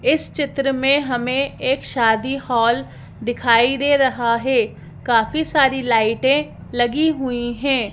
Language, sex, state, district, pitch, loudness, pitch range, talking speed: Hindi, female, Madhya Pradesh, Bhopal, 255 Hz, -18 LUFS, 230-275 Hz, 130 wpm